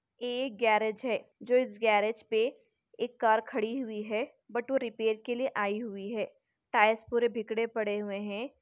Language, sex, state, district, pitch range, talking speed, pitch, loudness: Hindi, female, Chhattisgarh, Bastar, 215-250 Hz, 180 wpm, 230 Hz, -31 LUFS